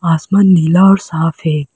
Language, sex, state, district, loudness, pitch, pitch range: Hindi, female, Arunachal Pradesh, Lower Dibang Valley, -11 LUFS, 165 Hz, 160-190 Hz